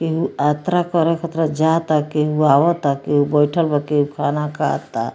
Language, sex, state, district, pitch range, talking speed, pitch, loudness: Bhojpuri, female, Bihar, Muzaffarpur, 145-165 Hz, 150 wpm, 150 Hz, -18 LUFS